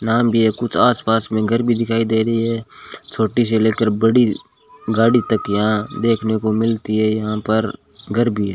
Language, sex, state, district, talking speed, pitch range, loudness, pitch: Hindi, male, Rajasthan, Bikaner, 195 wpm, 110-115 Hz, -18 LUFS, 110 Hz